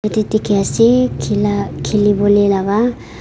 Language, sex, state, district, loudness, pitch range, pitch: Nagamese, female, Nagaland, Kohima, -15 LUFS, 195-215 Hz, 205 Hz